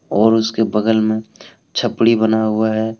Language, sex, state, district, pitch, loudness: Hindi, male, Jharkhand, Deoghar, 110 Hz, -16 LUFS